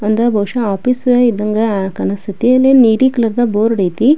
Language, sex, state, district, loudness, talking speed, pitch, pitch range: Kannada, female, Karnataka, Belgaum, -13 LUFS, 145 wpm, 225 Hz, 210-245 Hz